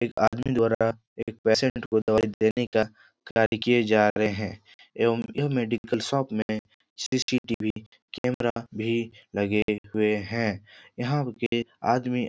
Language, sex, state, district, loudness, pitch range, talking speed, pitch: Hindi, male, Bihar, Jahanabad, -26 LUFS, 110-120 Hz, 140 wpm, 115 Hz